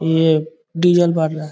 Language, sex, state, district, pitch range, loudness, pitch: Hindi, male, Bihar, Darbhanga, 155-170 Hz, -16 LUFS, 160 Hz